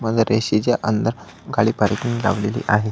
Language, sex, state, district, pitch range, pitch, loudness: Marathi, male, Maharashtra, Solapur, 105-115 Hz, 110 Hz, -20 LUFS